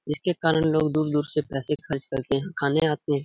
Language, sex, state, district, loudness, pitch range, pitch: Hindi, male, Bihar, Saran, -25 LUFS, 140-155 Hz, 150 Hz